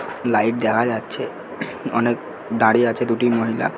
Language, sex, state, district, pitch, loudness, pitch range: Bengali, male, West Bengal, Dakshin Dinajpur, 115 Hz, -20 LUFS, 115-120 Hz